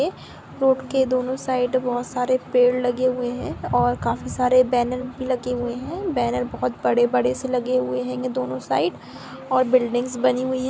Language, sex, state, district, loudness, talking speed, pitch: Hindi, female, Goa, North and South Goa, -22 LUFS, 185 wpm, 250 Hz